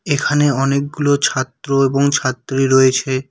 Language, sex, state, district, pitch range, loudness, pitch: Bengali, male, West Bengal, Cooch Behar, 130-145 Hz, -16 LUFS, 135 Hz